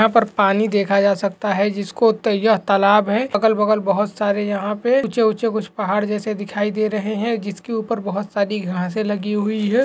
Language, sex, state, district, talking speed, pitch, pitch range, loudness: Hindi, male, Maharashtra, Nagpur, 200 wpm, 210 Hz, 200-220 Hz, -19 LUFS